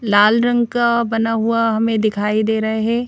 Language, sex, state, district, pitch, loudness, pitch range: Hindi, female, Madhya Pradesh, Bhopal, 225 Hz, -17 LUFS, 220-235 Hz